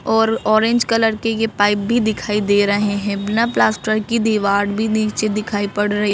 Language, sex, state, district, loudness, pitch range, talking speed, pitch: Hindi, female, Madhya Pradesh, Bhopal, -17 LUFS, 205-225 Hz, 195 wpm, 215 Hz